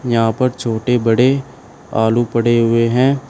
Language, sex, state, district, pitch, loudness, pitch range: Hindi, male, Uttar Pradesh, Shamli, 120 Hz, -15 LUFS, 115-130 Hz